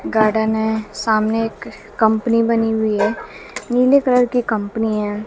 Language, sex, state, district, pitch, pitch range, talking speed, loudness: Hindi, female, Haryana, Jhajjar, 220 Hz, 215-230 Hz, 150 wpm, -17 LUFS